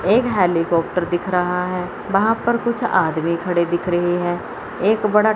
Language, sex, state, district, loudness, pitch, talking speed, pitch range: Hindi, female, Chandigarh, Chandigarh, -19 LUFS, 180 Hz, 165 wpm, 175-210 Hz